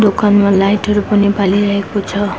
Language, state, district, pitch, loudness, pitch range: Nepali, West Bengal, Darjeeling, 205 Hz, -13 LUFS, 200-205 Hz